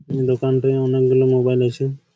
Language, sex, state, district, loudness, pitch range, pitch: Bengali, male, West Bengal, Malda, -18 LUFS, 130-135 Hz, 130 Hz